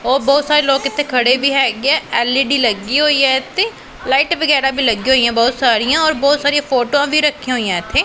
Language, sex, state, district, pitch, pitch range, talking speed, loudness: Punjabi, female, Punjab, Pathankot, 270 Hz, 250-290 Hz, 215 wpm, -14 LUFS